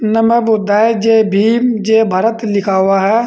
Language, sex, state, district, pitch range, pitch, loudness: Hindi, male, Uttar Pradesh, Saharanpur, 205-225 Hz, 220 Hz, -12 LUFS